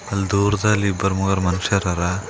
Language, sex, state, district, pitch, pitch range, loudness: Kannada, male, Karnataka, Bidar, 95 Hz, 95-100 Hz, -20 LUFS